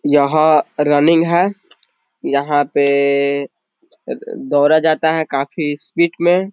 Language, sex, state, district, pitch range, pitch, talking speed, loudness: Hindi, male, Bihar, East Champaran, 140-165 Hz, 150 Hz, 100 wpm, -15 LUFS